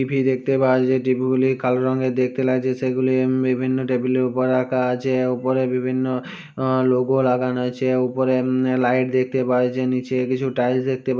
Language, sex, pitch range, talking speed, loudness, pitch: Bengali, male, 125-130 Hz, 190 wpm, -20 LUFS, 130 Hz